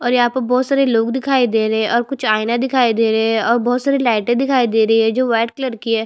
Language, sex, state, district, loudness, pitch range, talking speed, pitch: Hindi, female, Chhattisgarh, Bastar, -16 LUFS, 225-255 Hz, 295 wpm, 240 Hz